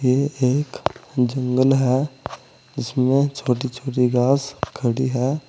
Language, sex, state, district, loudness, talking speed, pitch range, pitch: Hindi, male, Uttar Pradesh, Saharanpur, -21 LUFS, 110 wpm, 125-140 Hz, 130 Hz